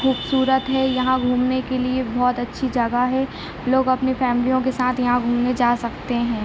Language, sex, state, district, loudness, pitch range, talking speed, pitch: Hindi, female, Jharkhand, Sahebganj, -20 LUFS, 245-260 Hz, 160 wpm, 255 Hz